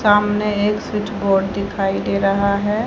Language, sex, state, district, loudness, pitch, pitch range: Hindi, female, Haryana, Charkhi Dadri, -19 LUFS, 205 Hz, 200-210 Hz